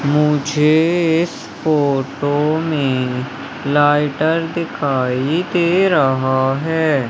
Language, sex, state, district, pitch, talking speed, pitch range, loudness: Hindi, male, Madhya Pradesh, Umaria, 150 Hz, 75 wpm, 135-160 Hz, -17 LUFS